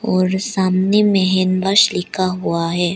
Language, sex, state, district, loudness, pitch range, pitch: Hindi, female, Arunachal Pradesh, Lower Dibang Valley, -16 LUFS, 185-195 Hz, 185 Hz